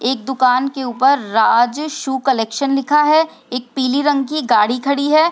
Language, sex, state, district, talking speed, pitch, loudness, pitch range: Hindi, female, Bihar, Sitamarhi, 190 wpm, 270 Hz, -16 LUFS, 250-290 Hz